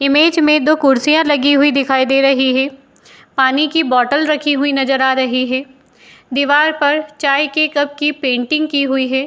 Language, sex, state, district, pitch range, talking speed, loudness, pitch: Hindi, female, Uttar Pradesh, Etah, 265-295 Hz, 185 wpm, -14 LUFS, 280 Hz